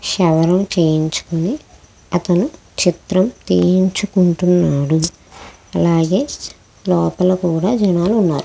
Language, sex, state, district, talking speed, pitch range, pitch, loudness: Telugu, female, Andhra Pradesh, Krishna, 70 wpm, 165-185 Hz, 180 Hz, -16 LUFS